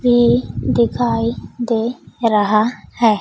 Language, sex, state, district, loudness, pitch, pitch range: Hindi, female, Bihar, Kaimur, -17 LUFS, 225 Hz, 185-240 Hz